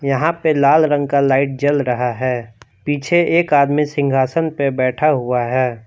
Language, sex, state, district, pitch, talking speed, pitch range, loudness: Hindi, male, Jharkhand, Palamu, 140 Hz, 175 wpm, 130-150 Hz, -16 LUFS